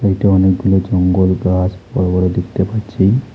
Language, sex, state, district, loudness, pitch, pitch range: Bengali, male, West Bengal, Alipurduar, -15 LUFS, 95 Hz, 90-100 Hz